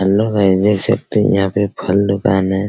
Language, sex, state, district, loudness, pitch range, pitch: Hindi, male, Bihar, Araria, -15 LUFS, 95-100 Hz, 100 Hz